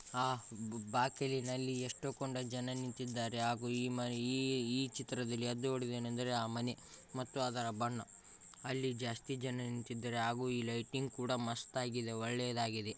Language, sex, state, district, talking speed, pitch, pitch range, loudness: Kannada, male, Karnataka, Raichur, 140 wpm, 125 Hz, 120-130 Hz, -39 LUFS